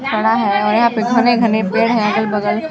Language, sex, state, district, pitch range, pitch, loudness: Hindi, female, Chhattisgarh, Sarguja, 215-235 Hz, 220 Hz, -15 LUFS